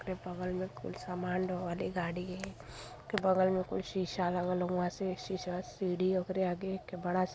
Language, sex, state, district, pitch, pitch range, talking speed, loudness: Hindi, female, Uttar Pradesh, Varanasi, 180 Hz, 180-185 Hz, 180 wpm, -35 LUFS